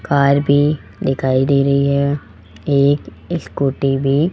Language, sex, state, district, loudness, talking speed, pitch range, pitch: Hindi, male, Rajasthan, Jaipur, -16 LUFS, 125 wpm, 135-145 Hz, 140 Hz